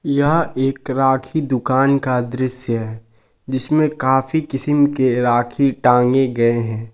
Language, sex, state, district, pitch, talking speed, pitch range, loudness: Hindi, male, Jharkhand, Palamu, 130 Hz, 130 wpm, 125-140 Hz, -17 LUFS